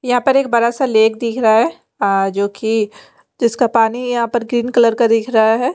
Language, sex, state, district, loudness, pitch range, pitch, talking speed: Hindi, female, Bihar, Patna, -15 LUFS, 220-240 Hz, 230 Hz, 230 wpm